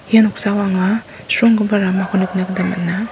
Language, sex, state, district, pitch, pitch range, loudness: Garo, female, Meghalaya, West Garo Hills, 200 Hz, 185-215 Hz, -16 LUFS